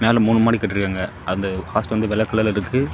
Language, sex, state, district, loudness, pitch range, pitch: Tamil, male, Tamil Nadu, Namakkal, -20 LUFS, 95-110 Hz, 110 Hz